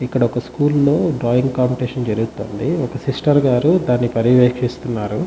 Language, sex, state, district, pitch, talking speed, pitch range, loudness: Telugu, male, Andhra Pradesh, Chittoor, 125 Hz, 135 wpm, 120-145 Hz, -17 LUFS